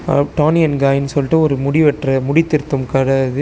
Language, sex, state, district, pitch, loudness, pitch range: Tamil, male, Tamil Nadu, Chennai, 140 Hz, -15 LUFS, 135-155 Hz